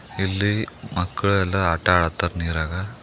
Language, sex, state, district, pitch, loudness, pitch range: Kannada, male, Karnataka, Bidar, 95 Hz, -22 LUFS, 85-100 Hz